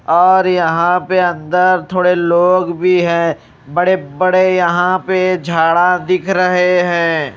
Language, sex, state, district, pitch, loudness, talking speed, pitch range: Hindi, male, Odisha, Malkangiri, 180 Hz, -13 LUFS, 120 wpm, 170-185 Hz